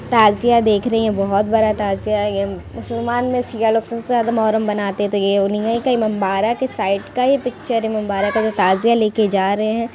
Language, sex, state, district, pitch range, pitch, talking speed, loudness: Hindi, female, Bihar, Muzaffarpur, 205-230 Hz, 220 Hz, 235 wpm, -18 LUFS